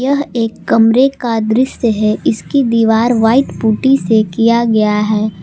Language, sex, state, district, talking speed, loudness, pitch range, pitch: Hindi, female, Jharkhand, Palamu, 155 wpm, -13 LUFS, 220-250 Hz, 230 Hz